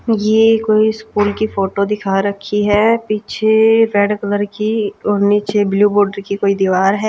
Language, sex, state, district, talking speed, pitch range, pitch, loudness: Hindi, female, Chhattisgarh, Raipur, 170 wpm, 200-215 Hz, 205 Hz, -15 LUFS